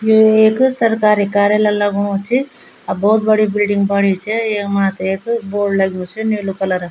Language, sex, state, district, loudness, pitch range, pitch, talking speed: Garhwali, female, Uttarakhand, Tehri Garhwal, -15 LUFS, 200-220 Hz, 205 Hz, 180 wpm